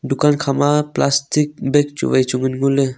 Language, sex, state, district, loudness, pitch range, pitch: Wancho, male, Arunachal Pradesh, Longding, -17 LUFS, 135-145 Hz, 140 Hz